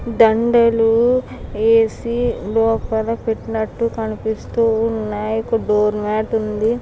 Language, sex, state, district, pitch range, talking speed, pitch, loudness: Telugu, female, Andhra Pradesh, Anantapur, 220-230 Hz, 90 wpm, 225 Hz, -18 LUFS